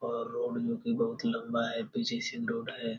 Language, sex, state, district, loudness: Hindi, male, Bihar, Jamui, -33 LUFS